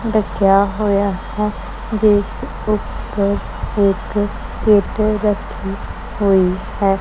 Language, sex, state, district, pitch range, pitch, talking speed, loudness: Punjabi, female, Punjab, Kapurthala, 195-215 Hz, 205 Hz, 85 wpm, -18 LUFS